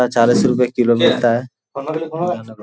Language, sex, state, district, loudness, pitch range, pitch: Hindi, male, Bihar, Jamui, -16 LUFS, 115-130 Hz, 125 Hz